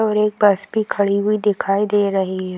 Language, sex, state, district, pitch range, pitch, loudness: Hindi, female, Uttar Pradesh, Gorakhpur, 195-210 Hz, 205 Hz, -18 LUFS